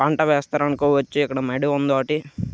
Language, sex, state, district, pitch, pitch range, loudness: Telugu, male, Andhra Pradesh, Krishna, 145 Hz, 135-145 Hz, -21 LUFS